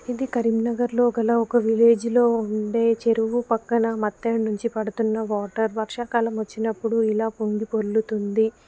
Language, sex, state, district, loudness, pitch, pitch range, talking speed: Telugu, female, Telangana, Karimnagar, -23 LUFS, 225 Hz, 220-235 Hz, 120 wpm